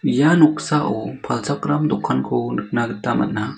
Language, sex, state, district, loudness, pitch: Garo, male, Meghalaya, South Garo Hills, -19 LUFS, 125 Hz